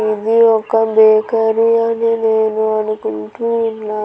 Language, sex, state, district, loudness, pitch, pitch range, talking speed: Telugu, female, Andhra Pradesh, Annamaya, -14 LUFS, 220 Hz, 215-230 Hz, 105 wpm